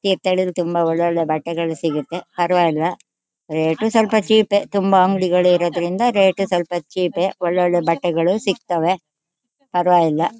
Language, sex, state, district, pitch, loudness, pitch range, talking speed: Kannada, female, Karnataka, Shimoga, 175 Hz, -18 LUFS, 170-190 Hz, 145 wpm